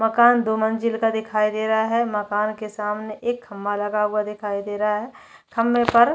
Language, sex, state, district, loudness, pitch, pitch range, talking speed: Hindi, female, Chhattisgarh, Bastar, -22 LUFS, 220 Hz, 210-230 Hz, 205 wpm